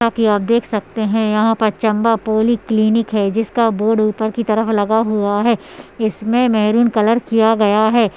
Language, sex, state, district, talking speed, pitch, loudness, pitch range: Hindi, female, Uttarakhand, Tehri Garhwal, 190 wpm, 220 Hz, -16 LUFS, 215-230 Hz